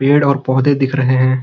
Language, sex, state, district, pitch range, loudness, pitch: Hindi, male, Uttarakhand, Uttarkashi, 130-140 Hz, -14 LUFS, 135 Hz